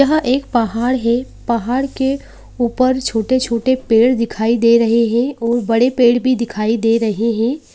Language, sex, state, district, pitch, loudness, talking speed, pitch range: Hindi, female, Uttarakhand, Uttarkashi, 235 Hz, -16 LUFS, 180 wpm, 230-255 Hz